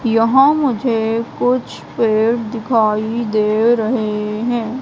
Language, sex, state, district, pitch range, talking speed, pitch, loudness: Hindi, female, Madhya Pradesh, Katni, 220-240 Hz, 100 wpm, 230 Hz, -16 LUFS